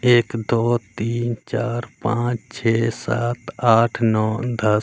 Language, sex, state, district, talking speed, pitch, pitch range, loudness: Hindi, male, Bihar, Katihar, 125 wpm, 120 Hz, 115-120 Hz, -21 LUFS